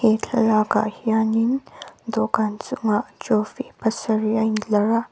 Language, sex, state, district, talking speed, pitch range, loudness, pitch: Mizo, female, Mizoram, Aizawl, 115 wpm, 215-230 Hz, -22 LUFS, 220 Hz